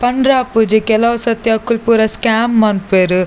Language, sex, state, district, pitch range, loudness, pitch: Tulu, female, Karnataka, Dakshina Kannada, 220-235 Hz, -13 LUFS, 225 Hz